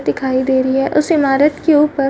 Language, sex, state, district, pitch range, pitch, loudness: Hindi, female, Chhattisgarh, Rajnandgaon, 265-300 Hz, 275 Hz, -14 LUFS